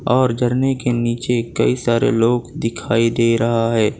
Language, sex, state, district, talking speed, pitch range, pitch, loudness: Hindi, male, Gujarat, Valsad, 165 wpm, 115-120 Hz, 115 Hz, -18 LUFS